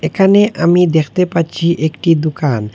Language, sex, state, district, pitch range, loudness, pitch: Bengali, male, Assam, Hailakandi, 155-180 Hz, -13 LUFS, 165 Hz